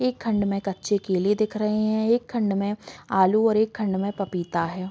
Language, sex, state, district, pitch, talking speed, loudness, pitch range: Hindi, female, Chhattisgarh, Bilaspur, 205 Hz, 220 wpm, -24 LUFS, 195-215 Hz